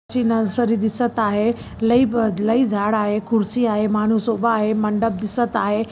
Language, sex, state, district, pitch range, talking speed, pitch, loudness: Marathi, female, Maharashtra, Chandrapur, 210-235 Hz, 175 wpm, 220 Hz, -19 LUFS